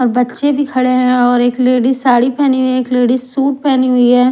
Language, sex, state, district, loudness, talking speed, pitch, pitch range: Hindi, female, Odisha, Nuapada, -12 LUFS, 250 wpm, 255 Hz, 245-265 Hz